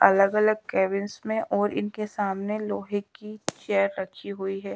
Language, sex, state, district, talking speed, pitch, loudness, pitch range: Hindi, female, Bihar, Patna, 165 wpm, 205 Hz, -27 LUFS, 195-215 Hz